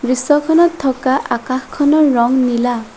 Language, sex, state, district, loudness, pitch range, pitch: Assamese, female, Assam, Sonitpur, -14 LUFS, 245-295 Hz, 260 Hz